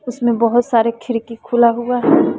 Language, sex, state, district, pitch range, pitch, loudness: Hindi, female, Bihar, West Champaran, 230-240 Hz, 235 Hz, -16 LUFS